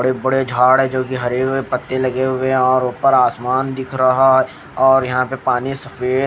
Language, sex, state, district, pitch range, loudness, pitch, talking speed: Hindi, female, Odisha, Khordha, 130-135 Hz, -16 LUFS, 130 Hz, 220 wpm